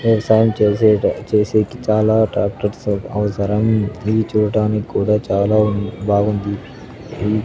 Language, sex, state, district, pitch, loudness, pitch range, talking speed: Telugu, male, Andhra Pradesh, Sri Satya Sai, 105 Hz, -17 LUFS, 105-110 Hz, 105 wpm